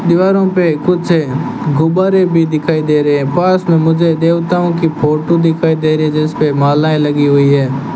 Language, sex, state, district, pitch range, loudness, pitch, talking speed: Hindi, male, Rajasthan, Bikaner, 150-170 Hz, -12 LUFS, 160 Hz, 190 wpm